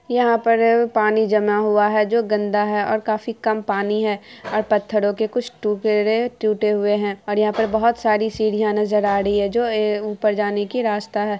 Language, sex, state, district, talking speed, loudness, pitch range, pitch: Hindi, female, Bihar, Araria, 205 wpm, -19 LUFS, 210-220 Hz, 215 Hz